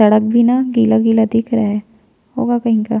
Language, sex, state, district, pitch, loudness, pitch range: Hindi, female, Chhattisgarh, Jashpur, 225 Hz, -15 LUFS, 215-235 Hz